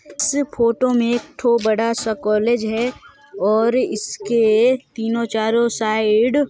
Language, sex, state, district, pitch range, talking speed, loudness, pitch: Hindi, female, Chhattisgarh, Sarguja, 220-250 Hz, 110 wpm, -18 LUFS, 235 Hz